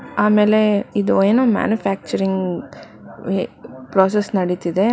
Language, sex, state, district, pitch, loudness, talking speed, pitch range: Kannada, female, Karnataka, Bangalore, 200 Hz, -18 LUFS, 85 wpm, 190-215 Hz